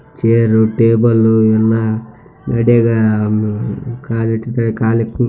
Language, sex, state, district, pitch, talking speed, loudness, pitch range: Kannada, male, Karnataka, Raichur, 115 Hz, 55 wpm, -14 LUFS, 110-115 Hz